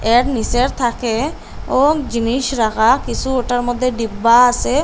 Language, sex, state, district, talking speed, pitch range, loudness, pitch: Bengali, female, Assam, Hailakandi, 135 wpm, 230-260 Hz, -16 LUFS, 245 Hz